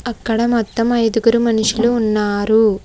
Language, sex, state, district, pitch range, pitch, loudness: Telugu, female, Telangana, Hyderabad, 220-235 Hz, 225 Hz, -16 LUFS